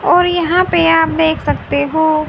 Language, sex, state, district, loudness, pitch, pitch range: Hindi, female, Haryana, Rohtak, -13 LUFS, 325 Hz, 315-350 Hz